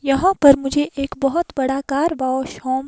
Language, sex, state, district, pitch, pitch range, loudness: Hindi, female, Himachal Pradesh, Shimla, 275 Hz, 270-295 Hz, -18 LUFS